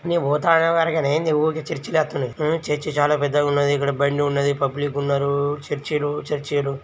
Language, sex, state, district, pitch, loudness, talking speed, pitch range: Telugu, female, Andhra Pradesh, Guntur, 145 Hz, -21 LUFS, 165 wpm, 140-155 Hz